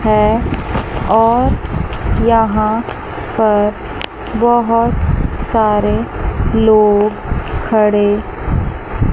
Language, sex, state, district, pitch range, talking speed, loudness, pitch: Hindi, female, Chandigarh, Chandigarh, 210-225 Hz, 50 wpm, -15 LUFS, 220 Hz